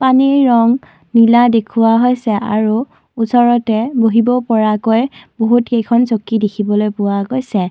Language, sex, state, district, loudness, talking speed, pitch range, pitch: Assamese, female, Assam, Kamrup Metropolitan, -13 LUFS, 110 wpm, 215-240 Hz, 230 Hz